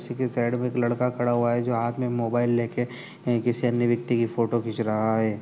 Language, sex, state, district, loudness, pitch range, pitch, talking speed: Hindi, male, Uttar Pradesh, Etah, -25 LUFS, 115-120 Hz, 120 Hz, 245 wpm